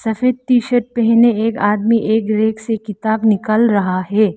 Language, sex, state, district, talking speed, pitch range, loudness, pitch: Hindi, female, Arunachal Pradesh, Lower Dibang Valley, 180 wpm, 215-230 Hz, -15 LUFS, 220 Hz